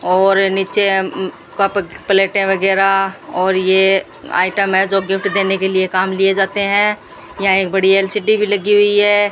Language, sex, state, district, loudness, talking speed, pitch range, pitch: Hindi, female, Rajasthan, Bikaner, -14 LUFS, 165 wpm, 190-200 Hz, 195 Hz